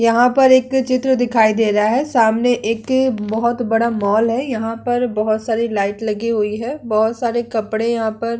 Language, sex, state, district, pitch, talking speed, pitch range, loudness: Hindi, female, Bihar, Vaishali, 230 Hz, 205 wpm, 220-245 Hz, -17 LUFS